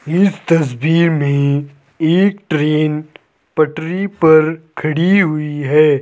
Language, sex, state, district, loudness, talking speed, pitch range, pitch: Hindi, male, Uttar Pradesh, Saharanpur, -15 LUFS, 100 wpm, 150-165 Hz, 155 Hz